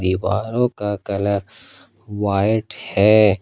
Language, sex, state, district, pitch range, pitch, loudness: Hindi, male, Jharkhand, Ranchi, 100-110 Hz, 105 Hz, -19 LUFS